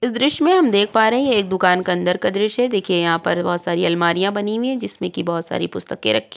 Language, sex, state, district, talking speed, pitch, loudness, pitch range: Hindi, female, Uttar Pradesh, Jyotiba Phule Nagar, 275 wpm, 195 Hz, -18 LUFS, 175-230 Hz